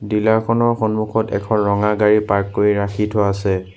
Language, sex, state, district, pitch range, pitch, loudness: Assamese, male, Assam, Sonitpur, 100-110 Hz, 105 Hz, -17 LUFS